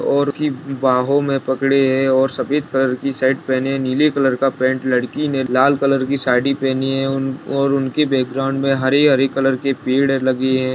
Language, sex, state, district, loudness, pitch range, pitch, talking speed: Hindi, male, Bihar, Jahanabad, -17 LUFS, 130-140 Hz, 135 Hz, 195 wpm